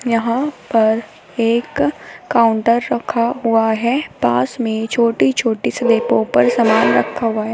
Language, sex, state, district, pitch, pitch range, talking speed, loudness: Hindi, female, Uttar Pradesh, Shamli, 230 Hz, 220-240 Hz, 125 wpm, -16 LUFS